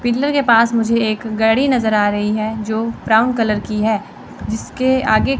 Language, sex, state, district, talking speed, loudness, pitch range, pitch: Hindi, female, Chandigarh, Chandigarh, 190 wpm, -16 LUFS, 215-240 Hz, 225 Hz